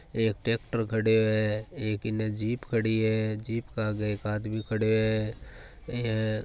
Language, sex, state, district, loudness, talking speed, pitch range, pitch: Marwari, male, Rajasthan, Churu, -29 LUFS, 165 wpm, 110-115 Hz, 110 Hz